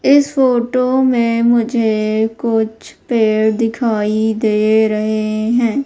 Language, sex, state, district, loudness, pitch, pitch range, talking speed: Hindi, female, Madhya Pradesh, Umaria, -15 LUFS, 225 Hz, 220-240 Hz, 100 wpm